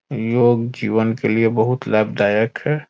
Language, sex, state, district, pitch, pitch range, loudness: Hindi, male, Bihar, Saran, 115 Hz, 110-120 Hz, -18 LUFS